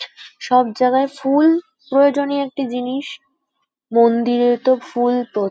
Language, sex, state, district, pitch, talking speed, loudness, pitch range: Bengali, female, West Bengal, Kolkata, 265 Hz, 110 wpm, -17 LUFS, 245-280 Hz